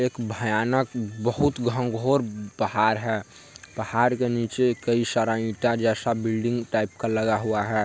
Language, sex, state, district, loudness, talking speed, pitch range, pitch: Hindi, male, Bihar, Sitamarhi, -25 LUFS, 145 wpm, 110-120 Hz, 115 Hz